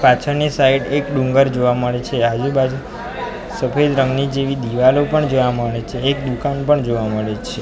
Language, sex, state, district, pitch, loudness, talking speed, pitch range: Gujarati, male, Gujarat, Valsad, 130 Hz, -17 LUFS, 175 wpm, 125-140 Hz